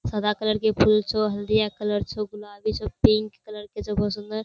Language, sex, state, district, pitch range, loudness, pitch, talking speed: Hindi, female, Bihar, Kishanganj, 210-215 Hz, -24 LUFS, 210 Hz, 230 wpm